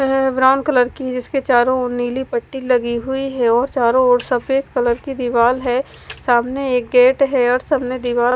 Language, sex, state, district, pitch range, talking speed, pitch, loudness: Hindi, female, Odisha, Malkangiri, 245-265 Hz, 210 wpm, 255 Hz, -17 LUFS